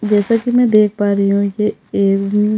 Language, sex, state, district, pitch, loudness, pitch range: Hindi, female, Chhattisgarh, Jashpur, 210 Hz, -15 LUFS, 200-215 Hz